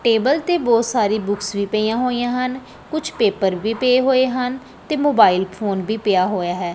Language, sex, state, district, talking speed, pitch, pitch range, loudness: Punjabi, female, Punjab, Pathankot, 195 wpm, 230 Hz, 200-255 Hz, -19 LUFS